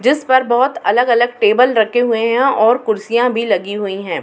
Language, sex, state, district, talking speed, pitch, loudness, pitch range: Hindi, female, Uttar Pradesh, Muzaffarnagar, 200 wpm, 235 Hz, -14 LUFS, 220-250 Hz